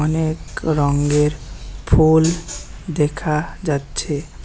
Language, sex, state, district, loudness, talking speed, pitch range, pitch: Bengali, male, West Bengal, Alipurduar, -19 LUFS, 65 wpm, 145-160 Hz, 150 Hz